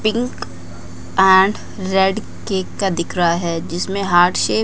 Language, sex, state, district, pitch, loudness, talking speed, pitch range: Hindi, female, Delhi, New Delhi, 180 Hz, -17 LUFS, 155 wpm, 165-195 Hz